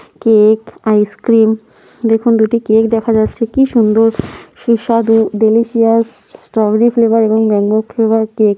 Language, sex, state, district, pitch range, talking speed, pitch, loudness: Bengali, female, West Bengal, North 24 Parganas, 220-230 Hz, 135 wpm, 225 Hz, -12 LUFS